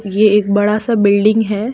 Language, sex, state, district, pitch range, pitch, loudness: Hindi, female, Jharkhand, Deoghar, 205-220 Hz, 210 Hz, -13 LUFS